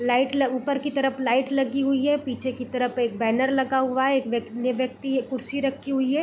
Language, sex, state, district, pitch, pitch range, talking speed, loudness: Hindi, female, Bihar, East Champaran, 260 Hz, 250-275 Hz, 240 wpm, -24 LUFS